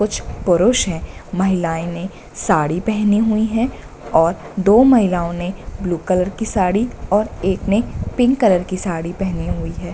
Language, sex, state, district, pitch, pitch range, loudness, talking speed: Hindi, female, Bihar, Bhagalpur, 190 Hz, 175-215 Hz, -18 LUFS, 165 wpm